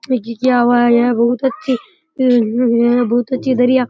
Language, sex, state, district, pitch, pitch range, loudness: Rajasthani, male, Rajasthan, Churu, 245 Hz, 240-255 Hz, -14 LUFS